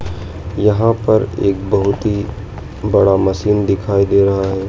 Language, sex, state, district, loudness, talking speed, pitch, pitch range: Hindi, male, Madhya Pradesh, Dhar, -15 LUFS, 140 wpm, 100 Hz, 95-105 Hz